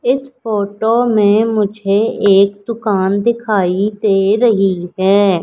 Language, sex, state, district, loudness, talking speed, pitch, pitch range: Hindi, female, Madhya Pradesh, Katni, -14 LUFS, 110 wpm, 205 Hz, 195-225 Hz